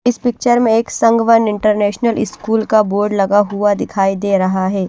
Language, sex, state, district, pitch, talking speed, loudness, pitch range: Hindi, female, Haryana, Rohtak, 210 Hz, 195 wpm, -14 LUFS, 200-230 Hz